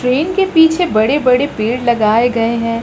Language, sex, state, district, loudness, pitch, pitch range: Hindi, female, Uttar Pradesh, Lucknow, -13 LUFS, 245 Hz, 230-290 Hz